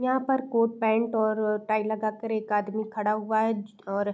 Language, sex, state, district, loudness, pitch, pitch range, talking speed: Hindi, female, Uttar Pradesh, Varanasi, -27 LUFS, 215 Hz, 210-225 Hz, 215 wpm